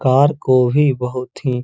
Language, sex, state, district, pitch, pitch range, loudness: Hindi, male, Uttar Pradesh, Jalaun, 130 Hz, 125-145 Hz, -16 LUFS